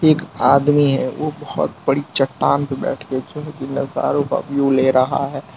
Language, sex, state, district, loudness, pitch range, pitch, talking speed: Hindi, male, Gujarat, Valsad, -18 LUFS, 135-150 Hz, 140 Hz, 150 wpm